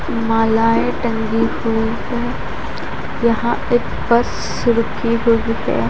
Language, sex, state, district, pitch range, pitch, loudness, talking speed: Hindi, female, Haryana, Charkhi Dadri, 225-235 Hz, 230 Hz, -18 LUFS, 100 wpm